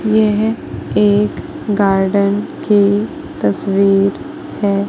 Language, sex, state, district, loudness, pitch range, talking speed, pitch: Hindi, female, Madhya Pradesh, Katni, -15 LUFS, 200-220 Hz, 75 wpm, 205 Hz